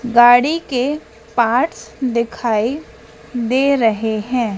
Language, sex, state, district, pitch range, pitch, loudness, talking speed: Hindi, female, Madhya Pradesh, Dhar, 230-260 Hz, 245 Hz, -17 LUFS, 90 wpm